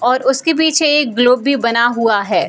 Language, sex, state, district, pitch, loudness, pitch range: Hindi, female, Bihar, Sitamarhi, 255 Hz, -13 LUFS, 235-295 Hz